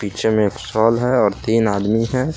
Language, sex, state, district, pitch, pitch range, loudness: Hindi, male, Jharkhand, Palamu, 115 Hz, 105-120 Hz, -18 LUFS